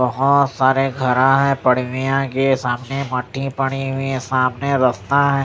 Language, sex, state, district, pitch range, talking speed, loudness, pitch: Hindi, male, Odisha, Nuapada, 130-135 Hz, 145 wpm, -18 LUFS, 135 Hz